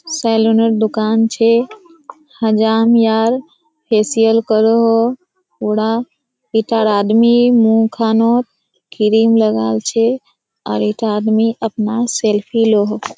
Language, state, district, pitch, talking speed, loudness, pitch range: Surjapuri, Bihar, Kishanganj, 225 Hz, 100 wpm, -14 LUFS, 220-235 Hz